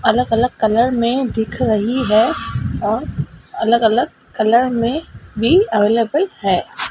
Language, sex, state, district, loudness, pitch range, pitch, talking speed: Hindi, female, Madhya Pradesh, Dhar, -17 LUFS, 220-250 Hz, 235 Hz, 115 wpm